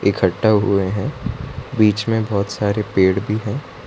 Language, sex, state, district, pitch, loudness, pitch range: Hindi, male, Gujarat, Valsad, 105 Hz, -19 LUFS, 100-115 Hz